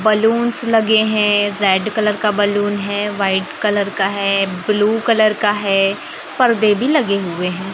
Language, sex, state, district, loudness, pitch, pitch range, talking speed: Hindi, male, Madhya Pradesh, Katni, -16 LUFS, 205 Hz, 195-215 Hz, 165 wpm